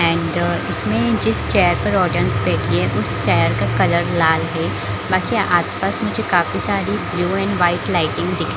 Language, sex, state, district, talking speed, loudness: Hindi, female, Chhattisgarh, Bilaspur, 175 wpm, -18 LUFS